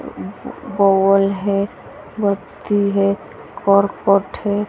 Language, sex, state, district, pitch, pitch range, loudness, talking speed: Hindi, female, Bihar, West Champaran, 200 Hz, 195-205 Hz, -17 LUFS, 75 wpm